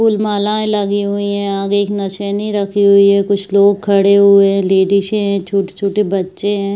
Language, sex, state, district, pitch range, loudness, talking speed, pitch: Hindi, female, Bihar, Saharsa, 200-205 Hz, -14 LUFS, 195 wpm, 200 Hz